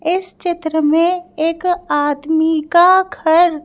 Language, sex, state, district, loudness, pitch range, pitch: Hindi, female, Madhya Pradesh, Bhopal, -15 LUFS, 315-355 Hz, 330 Hz